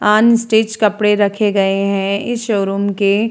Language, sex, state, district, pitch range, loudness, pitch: Hindi, female, Uttar Pradesh, Jalaun, 200-220 Hz, -15 LUFS, 210 Hz